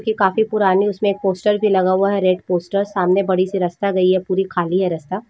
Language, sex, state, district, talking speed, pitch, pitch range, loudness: Hindi, female, Jharkhand, Jamtara, 250 wpm, 190 Hz, 185-200 Hz, -18 LUFS